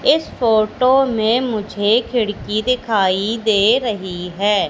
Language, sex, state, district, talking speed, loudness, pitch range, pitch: Hindi, female, Madhya Pradesh, Katni, 115 wpm, -17 LUFS, 205-240 Hz, 220 Hz